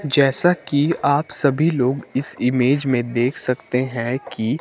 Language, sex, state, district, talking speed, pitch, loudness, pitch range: Hindi, male, Himachal Pradesh, Shimla, 155 wpm, 135 Hz, -19 LUFS, 125-145 Hz